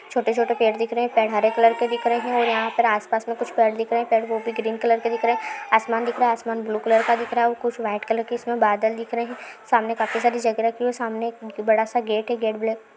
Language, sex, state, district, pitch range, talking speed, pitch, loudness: Hindi, female, Uttarakhand, Tehri Garhwal, 225-235 Hz, 300 wpm, 230 Hz, -22 LUFS